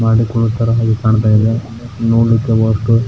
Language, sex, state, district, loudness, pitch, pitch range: Kannada, male, Karnataka, Belgaum, -14 LUFS, 115 Hz, 110-115 Hz